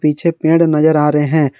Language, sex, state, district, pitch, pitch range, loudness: Hindi, male, Jharkhand, Garhwa, 155 Hz, 150-160 Hz, -13 LUFS